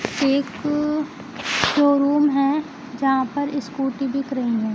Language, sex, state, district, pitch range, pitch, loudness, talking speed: Hindi, female, Bihar, Kaimur, 265-290 Hz, 275 Hz, -21 LUFS, 115 wpm